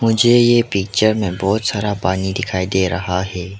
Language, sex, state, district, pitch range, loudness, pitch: Hindi, male, Arunachal Pradesh, Lower Dibang Valley, 95-110 Hz, -17 LUFS, 100 Hz